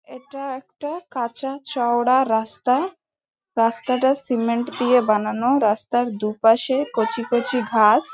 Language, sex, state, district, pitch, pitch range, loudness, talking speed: Bengali, female, West Bengal, Jalpaiguri, 245 Hz, 230-270 Hz, -21 LUFS, 110 wpm